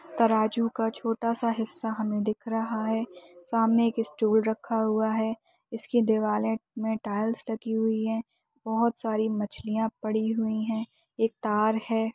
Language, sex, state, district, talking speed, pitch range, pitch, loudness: Hindi, male, Bihar, Bhagalpur, 155 wpm, 220-230 Hz, 225 Hz, -28 LUFS